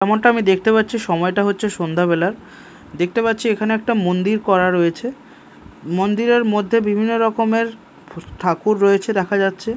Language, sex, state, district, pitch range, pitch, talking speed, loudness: Bengali, male, Odisha, Malkangiri, 180-225 Hz, 210 Hz, 140 wpm, -18 LUFS